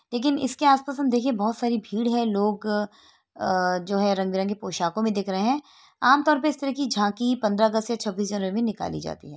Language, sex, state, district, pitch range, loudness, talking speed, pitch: Hindi, female, Uttar Pradesh, Etah, 200-260 Hz, -24 LUFS, 225 wpm, 220 Hz